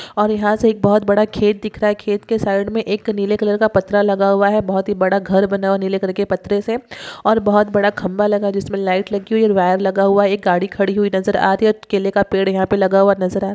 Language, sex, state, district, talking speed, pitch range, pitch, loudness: Hindi, female, Maharashtra, Dhule, 300 wpm, 195-210 Hz, 200 Hz, -16 LUFS